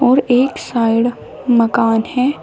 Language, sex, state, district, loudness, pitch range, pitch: Hindi, female, Uttar Pradesh, Shamli, -15 LUFS, 230-260 Hz, 245 Hz